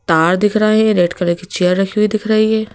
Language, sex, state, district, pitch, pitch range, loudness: Hindi, female, Madhya Pradesh, Bhopal, 210 Hz, 180-215 Hz, -14 LUFS